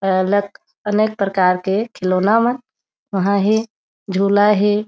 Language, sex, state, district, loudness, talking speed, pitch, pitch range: Chhattisgarhi, female, Chhattisgarh, Raigarh, -17 LUFS, 135 wpm, 205 Hz, 190-215 Hz